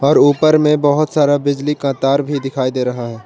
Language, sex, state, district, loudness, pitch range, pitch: Hindi, male, Jharkhand, Ranchi, -15 LUFS, 135-150 Hz, 145 Hz